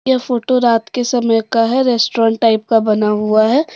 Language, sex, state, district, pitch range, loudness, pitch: Hindi, female, Jharkhand, Deoghar, 225-250 Hz, -14 LUFS, 230 Hz